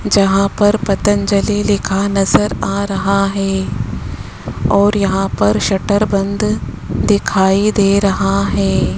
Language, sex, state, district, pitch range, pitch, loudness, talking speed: Hindi, male, Rajasthan, Jaipur, 190-200 Hz, 195 Hz, -15 LUFS, 115 wpm